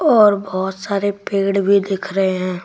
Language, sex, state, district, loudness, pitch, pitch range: Hindi, female, Delhi, New Delhi, -17 LUFS, 195 Hz, 190-200 Hz